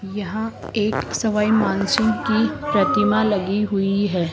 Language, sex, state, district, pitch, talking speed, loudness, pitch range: Hindi, female, Rajasthan, Jaipur, 210 Hz, 125 wpm, -20 LUFS, 195-220 Hz